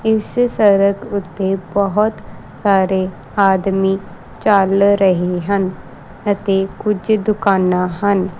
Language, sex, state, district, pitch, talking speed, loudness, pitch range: Punjabi, female, Punjab, Kapurthala, 195 Hz, 95 wpm, -16 LUFS, 190-205 Hz